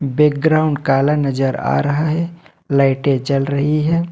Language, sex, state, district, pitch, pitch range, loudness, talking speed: Hindi, male, Jharkhand, Ranchi, 145 Hz, 135-155 Hz, -17 LUFS, 145 wpm